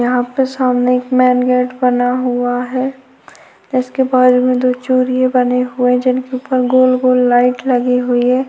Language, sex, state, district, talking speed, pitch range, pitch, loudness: Hindi, female, Chhattisgarh, Korba, 175 wpm, 250-255 Hz, 250 Hz, -14 LUFS